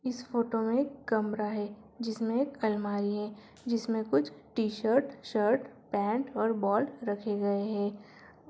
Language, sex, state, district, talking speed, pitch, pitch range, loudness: Hindi, female, Bihar, Lakhisarai, 140 wpm, 215 Hz, 205-235 Hz, -31 LUFS